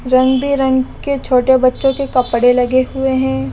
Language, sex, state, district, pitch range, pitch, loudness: Hindi, female, Rajasthan, Jaipur, 250-265 Hz, 260 Hz, -14 LUFS